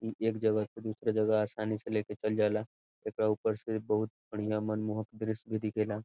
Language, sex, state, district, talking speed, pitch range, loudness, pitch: Bhojpuri, male, Bihar, Saran, 190 wpm, 105-110 Hz, -33 LUFS, 110 Hz